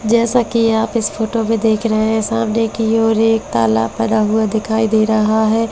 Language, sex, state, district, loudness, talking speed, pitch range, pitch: Hindi, female, Delhi, New Delhi, -15 LUFS, 220 wpm, 220-225 Hz, 220 Hz